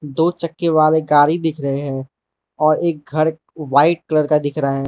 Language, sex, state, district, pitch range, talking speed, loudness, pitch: Hindi, male, Arunachal Pradesh, Lower Dibang Valley, 145-160 Hz, 195 wpm, -17 LUFS, 155 Hz